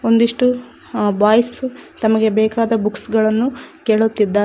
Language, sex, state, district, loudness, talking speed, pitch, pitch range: Kannada, female, Karnataka, Koppal, -17 LUFS, 110 wpm, 220 Hz, 215-235 Hz